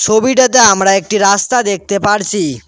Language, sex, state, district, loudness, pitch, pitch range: Bengali, male, West Bengal, Cooch Behar, -11 LUFS, 205 Hz, 195-220 Hz